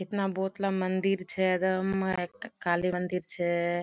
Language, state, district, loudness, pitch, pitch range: Surjapuri, Bihar, Kishanganj, -30 LUFS, 185 Hz, 180-190 Hz